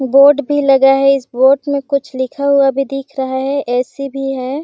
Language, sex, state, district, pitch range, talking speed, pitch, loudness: Hindi, female, Chhattisgarh, Sarguja, 265-280 Hz, 245 wpm, 275 Hz, -14 LUFS